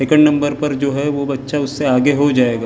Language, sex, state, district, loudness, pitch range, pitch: Hindi, male, Maharashtra, Gondia, -16 LUFS, 135-145 Hz, 140 Hz